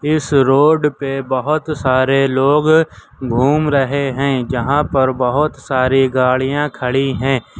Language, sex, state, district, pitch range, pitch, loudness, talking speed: Hindi, male, Uttar Pradesh, Lucknow, 130-145 Hz, 135 Hz, -15 LUFS, 125 wpm